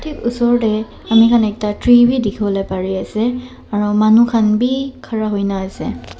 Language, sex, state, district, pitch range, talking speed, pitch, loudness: Nagamese, male, Nagaland, Dimapur, 205-240 Hz, 175 wpm, 220 Hz, -16 LUFS